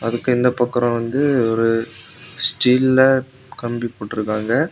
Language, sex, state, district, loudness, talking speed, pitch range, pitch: Tamil, male, Tamil Nadu, Kanyakumari, -18 LUFS, 100 wpm, 115-130 Hz, 120 Hz